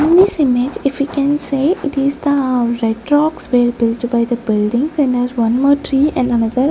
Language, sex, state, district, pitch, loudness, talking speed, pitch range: English, female, Chandigarh, Chandigarh, 265 Hz, -15 LUFS, 170 wpm, 240-285 Hz